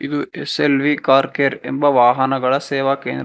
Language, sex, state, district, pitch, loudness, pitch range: Kannada, male, Karnataka, Bangalore, 135 Hz, -17 LUFS, 135-145 Hz